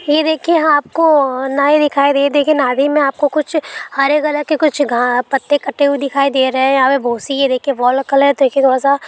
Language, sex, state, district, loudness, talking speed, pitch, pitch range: Hindi, female, Chhattisgarh, Balrampur, -14 LUFS, 240 wpm, 280 Hz, 270-295 Hz